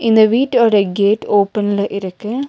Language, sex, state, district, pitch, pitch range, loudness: Tamil, female, Tamil Nadu, Nilgiris, 210 Hz, 200-230 Hz, -15 LUFS